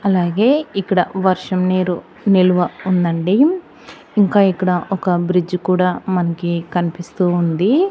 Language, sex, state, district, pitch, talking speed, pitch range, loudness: Telugu, female, Andhra Pradesh, Annamaya, 185 Hz, 105 wpm, 175-195 Hz, -17 LUFS